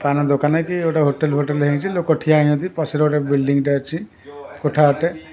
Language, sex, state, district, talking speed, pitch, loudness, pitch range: Odia, male, Odisha, Khordha, 180 wpm, 150 Hz, -18 LUFS, 145-160 Hz